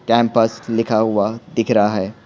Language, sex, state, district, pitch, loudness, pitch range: Hindi, male, Bihar, Patna, 115 Hz, -18 LUFS, 110-115 Hz